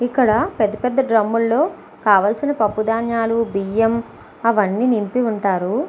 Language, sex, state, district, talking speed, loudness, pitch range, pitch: Telugu, female, Andhra Pradesh, Visakhapatnam, 110 wpm, -18 LUFS, 210-240 Hz, 225 Hz